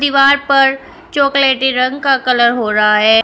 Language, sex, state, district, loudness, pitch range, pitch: Hindi, female, Uttar Pradesh, Shamli, -12 LUFS, 240-275 Hz, 270 Hz